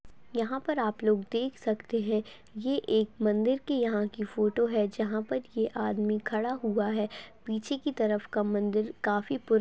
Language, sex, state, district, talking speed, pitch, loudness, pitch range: Hindi, female, Chhattisgarh, Kabirdham, 180 wpm, 220 Hz, -30 LUFS, 215-235 Hz